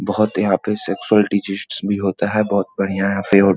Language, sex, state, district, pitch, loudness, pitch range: Hindi, male, Bihar, Muzaffarpur, 100 Hz, -18 LUFS, 95-105 Hz